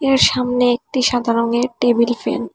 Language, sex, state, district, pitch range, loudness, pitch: Bengali, female, Assam, Hailakandi, 240-255 Hz, -17 LUFS, 245 Hz